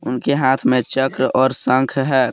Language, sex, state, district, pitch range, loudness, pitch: Hindi, male, Jharkhand, Palamu, 130-135 Hz, -17 LUFS, 130 Hz